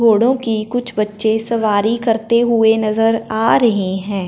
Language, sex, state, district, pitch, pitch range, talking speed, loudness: Hindi, male, Punjab, Fazilka, 225 Hz, 215-230 Hz, 155 wpm, -16 LUFS